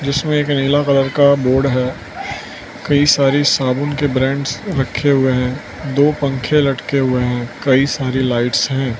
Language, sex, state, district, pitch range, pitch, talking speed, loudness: Hindi, male, Gujarat, Valsad, 130-145 Hz, 135 Hz, 160 wpm, -16 LUFS